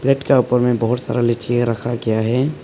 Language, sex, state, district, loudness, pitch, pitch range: Hindi, male, Arunachal Pradesh, Papum Pare, -18 LUFS, 120 Hz, 120-125 Hz